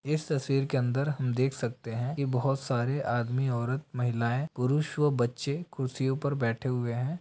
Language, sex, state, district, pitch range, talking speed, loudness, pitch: Hindi, male, Bihar, Bhagalpur, 125-140 Hz, 185 wpm, -30 LUFS, 130 Hz